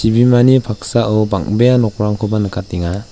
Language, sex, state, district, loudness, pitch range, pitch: Garo, male, Meghalaya, West Garo Hills, -14 LUFS, 100-120 Hz, 105 Hz